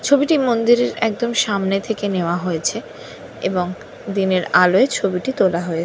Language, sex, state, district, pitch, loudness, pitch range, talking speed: Bengali, female, West Bengal, Dakshin Dinajpur, 200 Hz, -18 LUFS, 180-240 Hz, 135 wpm